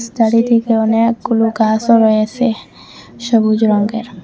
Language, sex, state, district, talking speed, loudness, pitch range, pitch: Bengali, female, Assam, Hailakandi, 85 wpm, -14 LUFS, 220-230 Hz, 225 Hz